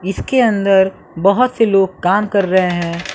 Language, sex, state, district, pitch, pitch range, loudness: Hindi, male, Bihar, West Champaran, 195 Hz, 185-210 Hz, -14 LUFS